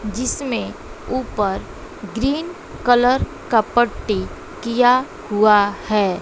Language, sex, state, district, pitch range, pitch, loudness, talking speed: Hindi, female, Bihar, West Champaran, 210-255 Hz, 240 Hz, -19 LUFS, 85 wpm